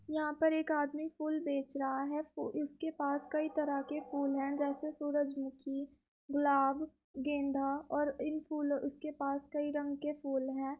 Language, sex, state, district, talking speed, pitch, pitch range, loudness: Hindi, female, Uttar Pradesh, Muzaffarnagar, 165 wpm, 290 Hz, 275-305 Hz, -37 LUFS